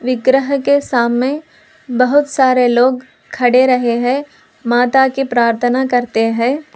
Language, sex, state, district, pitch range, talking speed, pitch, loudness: Hindi, female, Telangana, Hyderabad, 245-270 Hz, 125 wpm, 255 Hz, -14 LUFS